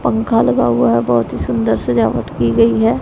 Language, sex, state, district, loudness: Hindi, female, Punjab, Pathankot, -15 LUFS